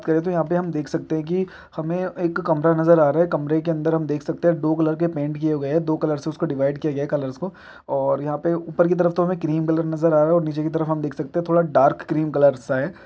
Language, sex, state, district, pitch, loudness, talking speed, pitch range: Hindi, male, Chhattisgarh, Bilaspur, 160 Hz, -21 LUFS, 310 wpm, 150-170 Hz